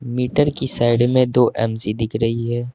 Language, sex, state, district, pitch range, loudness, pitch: Hindi, male, Uttar Pradesh, Saharanpur, 115-125 Hz, -18 LUFS, 120 Hz